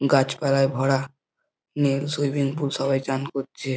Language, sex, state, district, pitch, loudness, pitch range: Bengali, male, West Bengal, Jhargram, 135 Hz, -24 LUFS, 135-140 Hz